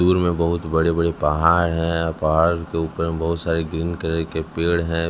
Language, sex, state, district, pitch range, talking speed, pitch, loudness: Hindi, male, Chhattisgarh, Raipur, 80-85 Hz, 210 wpm, 85 Hz, -21 LUFS